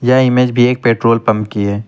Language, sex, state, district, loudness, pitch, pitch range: Hindi, male, Uttar Pradesh, Lucknow, -13 LUFS, 115 Hz, 110-125 Hz